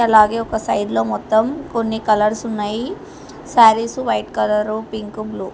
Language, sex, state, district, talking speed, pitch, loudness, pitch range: Telugu, female, Telangana, Hyderabad, 150 wpm, 220 Hz, -18 LUFS, 210-230 Hz